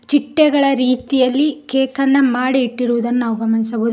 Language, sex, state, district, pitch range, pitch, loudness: Kannada, female, Karnataka, Koppal, 240-275 Hz, 255 Hz, -16 LUFS